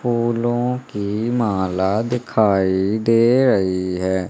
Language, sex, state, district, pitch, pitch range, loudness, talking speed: Hindi, male, Madhya Pradesh, Umaria, 110 Hz, 95-120 Hz, -19 LUFS, 95 wpm